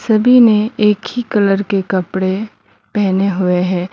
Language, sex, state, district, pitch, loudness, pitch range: Hindi, female, Mizoram, Aizawl, 200 Hz, -14 LUFS, 190-215 Hz